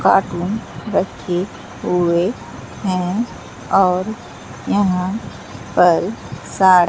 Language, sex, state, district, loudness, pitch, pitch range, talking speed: Hindi, female, Bihar, Katihar, -19 LUFS, 185 Hz, 180-200 Hz, 80 wpm